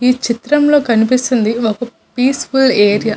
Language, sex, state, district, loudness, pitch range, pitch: Telugu, female, Andhra Pradesh, Visakhapatnam, -13 LUFS, 225-260 Hz, 245 Hz